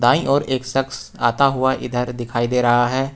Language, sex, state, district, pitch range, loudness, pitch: Hindi, male, Uttar Pradesh, Lucknow, 120-135 Hz, -19 LUFS, 130 Hz